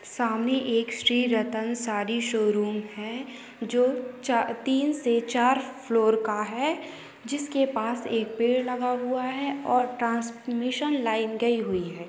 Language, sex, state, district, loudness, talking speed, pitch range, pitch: Hindi, female, West Bengal, Purulia, -26 LUFS, 135 wpm, 225-255 Hz, 235 Hz